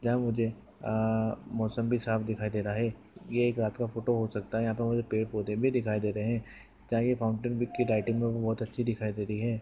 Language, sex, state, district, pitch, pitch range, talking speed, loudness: Hindi, male, Maharashtra, Sindhudurg, 115 Hz, 110-115 Hz, 250 wpm, -31 LUFS